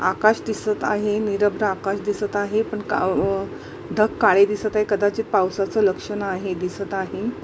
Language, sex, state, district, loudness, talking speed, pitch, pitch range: Marathi, female, Maharashtra, Mumbai Suburban, -22 LUFS, 155 wpm, 205 Hz, 195-215 Hz